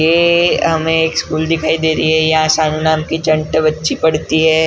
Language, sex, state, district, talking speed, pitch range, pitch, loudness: Hindi, male, Maharashtra, Gondia, 190 wpm, 155-160 Hz, 160 Hz, -14 LUFS